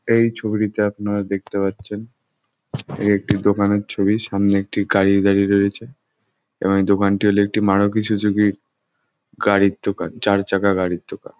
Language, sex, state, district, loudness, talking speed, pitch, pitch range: Bengali, male, West Bengal, Jhargram, -19 LUFS, 135 wpm, 100 Hz, 100-105 Hz